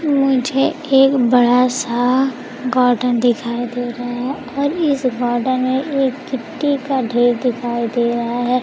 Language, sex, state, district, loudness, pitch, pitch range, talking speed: Hindi, female, Bihar, Kaimur, -17 LUFS, 250 Hz, 245-270 Hz, 145 wpm